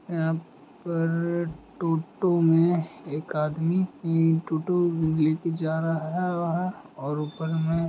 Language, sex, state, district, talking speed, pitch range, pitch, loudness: Hindi, male, Bihar, Bhagalpur, 115 wpm, 160-170 Hz, 165 Hz, -26 LUFS